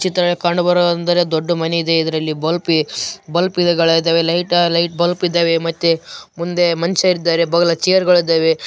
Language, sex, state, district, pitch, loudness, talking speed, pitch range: Kannada, male, Karnataka, Raichur, 170 Hz, -16 LUFS, 140 wpm, 165-175 Hz